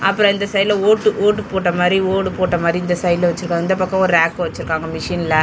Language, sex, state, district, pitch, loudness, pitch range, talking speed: Tamil, male, Tamil Nadu, Chennai, 185 Hz, -17 LUFS, 175-195 Hz, 210 wpm